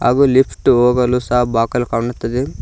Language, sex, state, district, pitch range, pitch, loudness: Kannada, male, Karnataka, Koppal, 120-125 Hz, 125 Hz, -15 LUFS